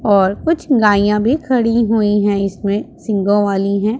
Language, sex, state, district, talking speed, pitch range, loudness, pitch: Hindi, female, Punjab, Pathankot, 165 wpm, 200-230 Hz, -15 LUFS, 210 Hz